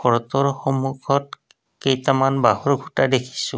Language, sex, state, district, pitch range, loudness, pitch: Assamese, male, Assam, Kamrup Metropolitan, 130-140 Hz, -20 LUFS, 135 Hz